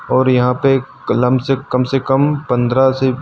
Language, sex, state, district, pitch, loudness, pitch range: Hindi, male, Uttar Pradesh, Lucknow, 130 Hz, -15 LUFS, 125-135 Hz